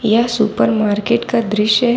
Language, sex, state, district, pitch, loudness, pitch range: Hindi, female, Jharkhand, Ranchi, 220 Hz, -15 LUFS, 210-235 Hz